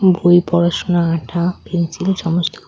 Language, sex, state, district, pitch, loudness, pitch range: Bengali, female, West Bengal, Cooch Behar, 175 Hz, -16 LUFS, 170-180 Hz